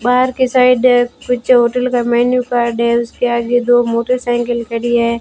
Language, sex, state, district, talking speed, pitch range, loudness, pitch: Hindi, female, Rajasthan, Bikaner, 170 wpm, 235-250 Hz, -14 LUFS, 245 Hz